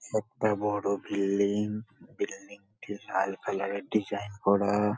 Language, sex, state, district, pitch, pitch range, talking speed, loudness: Bengali, male, West Bengal, North 24 Parganas, 100 Hz, 100-105 Hz, 130 wpm, -30 LUFS